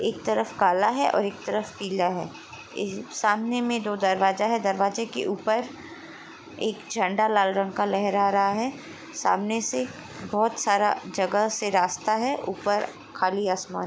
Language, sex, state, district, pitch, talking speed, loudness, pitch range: Hindi, female, Chhattisgarh, Sukma, 205 Hz, 155 wpm, -25 LUFS, 195-220 Hz